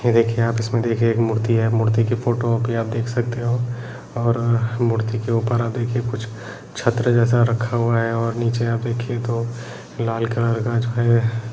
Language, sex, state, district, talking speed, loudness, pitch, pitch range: Kumaoni, male, Uttarakhand, Uttarkashi, 205 wpm, -20 LUFS, 115 Hz, 115-120 Hz